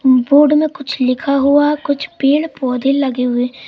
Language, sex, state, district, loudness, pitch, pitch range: Hindi, male, Madhya Pradesh, Katni, -14 LUFS, 275 Hz, 255-290 Hz